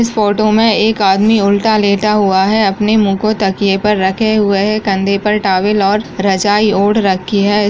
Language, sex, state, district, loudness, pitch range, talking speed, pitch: Hindi, female, Uttar Pradesh, Jyotiba Phule Nagar, -12 LUFS, 195-215 Hz, 195 wpm, 205 Hz